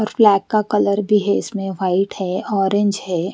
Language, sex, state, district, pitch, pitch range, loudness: Hindi, female, Bihar, West Champaran, 200 Hz, 190-210 Hz, -18 LUFS